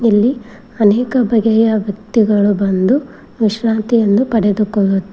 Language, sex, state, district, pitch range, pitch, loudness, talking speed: Kannada, female, Karnataka, Koppal, 205-235 Hz, 220 Hz, -14 LUFS, 70 wpm